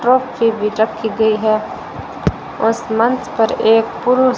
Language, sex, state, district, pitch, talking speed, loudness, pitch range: Hindi, female, Rajasthan, Bikaner, 225 Hz, 135 wpm, -16 LUFS, 220-245 Hz